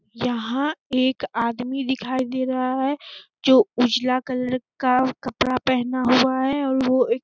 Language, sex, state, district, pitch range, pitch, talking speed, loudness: Hindi, female, Jharkhand, Sahebganj, 250-265 Hz, 255 Hz, 150 wpm, -22 LUFS